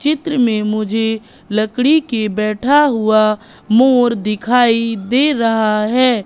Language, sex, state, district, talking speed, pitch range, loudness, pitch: Hindi, female, Madhya Pradesh, Katni, 115 wpm, 215-250 Hz, -15 LUFS, 225 Hz